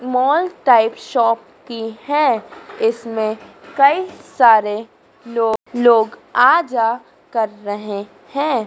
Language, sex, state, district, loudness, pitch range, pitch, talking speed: Hindi, female, Madhya Pradesh, Dhar, -17 LUFS, 220-275 Hz, 235 Hz, 105 wpm